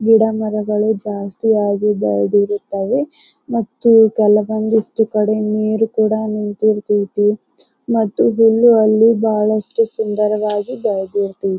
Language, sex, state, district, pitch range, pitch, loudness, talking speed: Kannada, female, Karnataka, Bijapur, 210-225 Hz, 215 Hz, -16 LUFS, 95 wpm